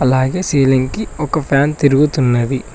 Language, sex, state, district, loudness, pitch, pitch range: Telugu, male, Telangana, Mahabubabad, -15 LUFS, 140 Hz, 130-150 Hz